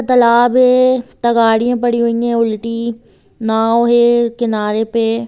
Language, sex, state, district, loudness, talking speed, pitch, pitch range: Hindi, female, Bihar, Sitamarhi, -14 LUFS, 125 wpm, 235 Hz, 230-240 Hz